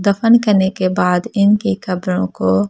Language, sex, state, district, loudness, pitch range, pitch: Hindi, female, Delhi, New Delhi, -15 LUFS, 180-210 Hz, 190 Hz